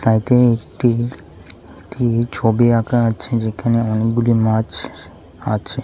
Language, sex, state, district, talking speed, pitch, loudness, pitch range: Bengali, male, Tripura, West Tripura, 105 wpm, 115 Hz, -17 LUFS, 110-120 Hz